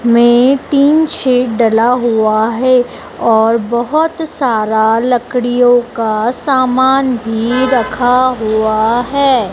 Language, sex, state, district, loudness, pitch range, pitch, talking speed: Hindi, female, Madhya Pradesh, Dhar, -12 LUFS, 225-255 Hz, 245 Hz, 100 wpm